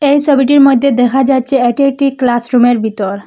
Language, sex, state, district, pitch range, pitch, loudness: Bengali, female, Assam, Hailakandi, 245-275 Hz, 265 Hz, -11 LUFS